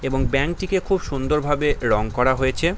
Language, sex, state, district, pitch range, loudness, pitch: Bengali, male, West Bengal, Paschim Medinipur, 130-170 Hz, -21 LUFS, 140 Hz